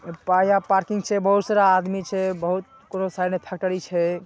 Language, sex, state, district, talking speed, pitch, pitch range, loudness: Maithili, male, Bihar, Saharsa, 195 wpm, 190 Hz, 185-195 Hz, -22 LUFS